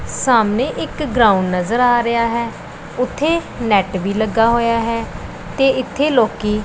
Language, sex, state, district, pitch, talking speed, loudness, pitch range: Punjabi, female, Punjab, Pathankot, 230 Hz, 145 wpm, -17 LUFS, 210-250 Hz